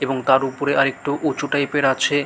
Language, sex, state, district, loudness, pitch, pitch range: Bengali, male, West Bengal, Malda, -19 LUFS, 140 Hz, 135-145 Hz